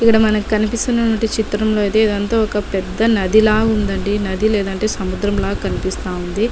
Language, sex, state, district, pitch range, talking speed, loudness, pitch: Telugu, female, Telangana, Nalgonda, 195-220 Hz, 165 wpm, -17 LUFS, 215 Hz